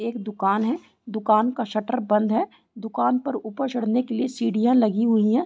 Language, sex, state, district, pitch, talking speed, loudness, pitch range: Hindi, female, Uttar Pradesh, Deoria, 230 Hz, 200 wpm, -23 LUFS, 215-245 Hz